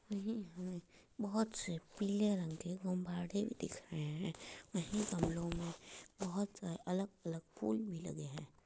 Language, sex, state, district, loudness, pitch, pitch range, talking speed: Hindi, female, Uttar Pradesh, Etah, -42 LUFS, 180 Hz, 170-205 Hz, 145 wpm